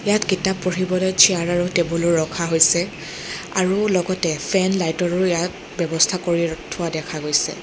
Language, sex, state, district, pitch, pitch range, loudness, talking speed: Assamese, female, Assam, Kamrup Metropolitan, 175 Hz, 170-185 Hz, -20 LUFS, 150 wpm